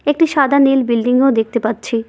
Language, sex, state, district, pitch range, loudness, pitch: Bengali, female, West Bengal, Cooch Behar, 230-280 Hz, -14 LUFS, 250 Hz